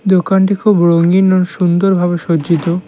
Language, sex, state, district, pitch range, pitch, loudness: Bengali, male, West Bengal, Cooch Behar, 170-190 Hz, 180 Hz, -12 LUFS